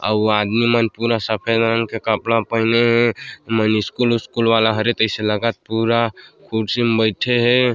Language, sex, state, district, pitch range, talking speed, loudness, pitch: Chhattisgarhi, male, Chhattisgarh, Sarguja, 110-115 Hz, 185 wpm, -18 LUFS, 115 Hz